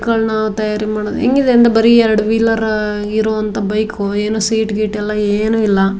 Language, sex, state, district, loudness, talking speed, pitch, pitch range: Kannada, female, Karnataka, Dharwad, -14 LUFS, 170 wpm, 215 Hz, 210-225 Hz